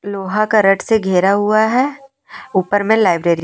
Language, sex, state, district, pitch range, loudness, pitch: Hindi, female, Jharkhand, Deoghar, 190-220 Hz, -15 LUFS, 210 Hz